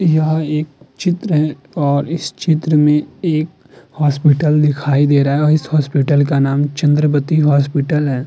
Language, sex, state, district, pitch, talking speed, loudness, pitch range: Hindi, male, Uttar Pradesh, Muzaffarnagar, 150 Hz, 160 wpm, -15 LUFS, 145-155 Hz